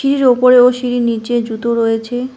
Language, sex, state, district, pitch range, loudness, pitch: Bengali, female, West Bengal, Cooch Behar, 230-250 Hz, -13 LUFS, 245 Hz